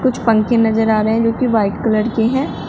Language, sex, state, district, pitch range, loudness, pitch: Hindi, female, Uttar Pradesh, Shamli, 220-240 Hz, -15 LUFS, 225 Hz